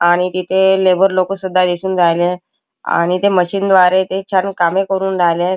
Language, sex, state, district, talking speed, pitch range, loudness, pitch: Marathi, male, Maharashtra, Chandrapur, 170 wpm, 180-190 Hz, -14 LUFS, 185 Hz